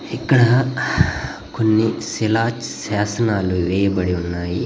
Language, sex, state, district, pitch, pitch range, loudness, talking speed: Telugu, male, Andhra Pradesh, Guntur, 110 Hz, 90-115 Hz, -19 LUFS, 75 wpm